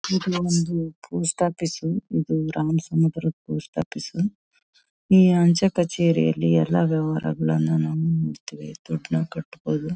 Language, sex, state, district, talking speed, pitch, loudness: Kannada, female, Karnataka, Chamarajanagar, 115 wpm, 160 Hz, -23 LUFS